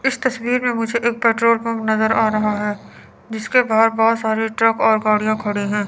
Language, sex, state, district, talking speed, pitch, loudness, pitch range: Hindi, female, Chandigarh, Chandigarh, 205 wpm, 225 Hz, -18 LUFS, 215-230 Hz